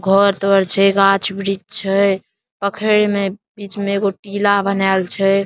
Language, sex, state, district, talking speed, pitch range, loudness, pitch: Maithili, male, Bihar, Saharsa, 155 wpm, 195-200 Hz, -16 LUFS, 195 Hz